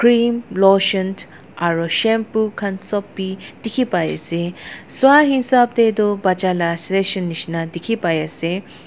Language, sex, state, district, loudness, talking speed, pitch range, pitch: Nagamese, female, Nagaland, Dimapur, -17 LUFS, 130 wpm, 170-225 Hz, 195 Hz